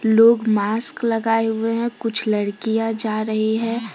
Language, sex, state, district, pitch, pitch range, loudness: Hindi, female, Jharkhand, Deoghar, 225 Hz, 220-230 Hz, -18 LUFS